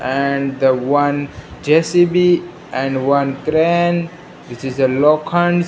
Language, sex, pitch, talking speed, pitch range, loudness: English, male, 145 Hz, 125 wpm, 135-175 Hz, -16 LUFS